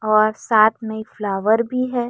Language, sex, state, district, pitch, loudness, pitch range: Hindi, female, Chhattisgarh, Raipur, 220 Hz, -19 LUFS, 215-235 Hz